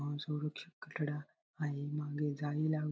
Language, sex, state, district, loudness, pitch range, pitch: Marathi, male, Maharashtra, Sindhudurg, -39 LUFS, 145-150 Hz, 150 Hz